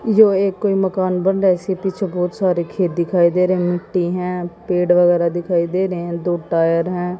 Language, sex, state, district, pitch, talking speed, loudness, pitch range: Hindi, female, Haryana, Jhajjar, 180 Hz, 210 wpm, -18 LUFS, 175-190 Hz